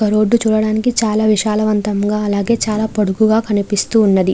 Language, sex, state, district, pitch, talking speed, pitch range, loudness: Telugu, female, Andhra Pradesh, Chittoor, 215 Hz, 125 wpm, 205-220 Hz, -15 LUFS